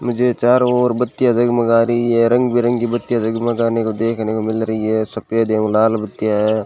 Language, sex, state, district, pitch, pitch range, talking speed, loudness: Hindi, male, Rajasthan, Bikaner, 115 Hz, 110-120 Hz, 200 wpm, -17 LUFS